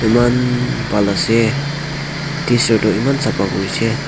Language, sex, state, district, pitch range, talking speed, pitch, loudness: Nagamese, male, Nagaland, Dimapur, 110-140 Hz, 130 wpm, 120 Hz, -16 LUFS